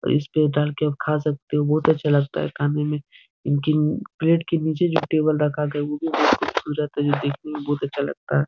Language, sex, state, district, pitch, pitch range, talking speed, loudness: Hindi, male, Bihar, Jahanabad, 150 Hz, 145-155 Hz, 240 wpm, -22 LUFS